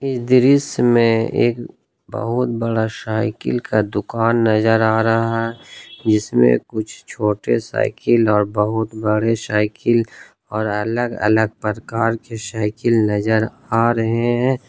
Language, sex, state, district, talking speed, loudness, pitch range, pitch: Hindi, male, Jharkhand, Ranchi, 125 wpm, -18 LUFS, 105-115 Hz, 110 Hz